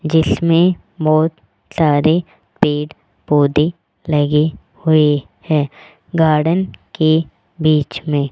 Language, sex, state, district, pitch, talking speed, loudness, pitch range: Hindi, female, Rajasthan, Jaipur, 155 Hz, 85 wpm, -16 LUFS, 145-160 Hz